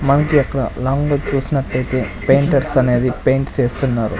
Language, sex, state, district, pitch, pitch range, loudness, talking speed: Telugu, male, Andhra Pradesh, Sri Satya Sai, 135 Hz, 125-140 Hz, -17 LUFS, 130 wpm